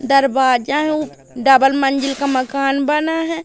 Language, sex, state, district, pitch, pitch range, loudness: Hindi, female, Madhya Pradesh, Katni, 275 Hz, 270-300 Hz, -16 LUFS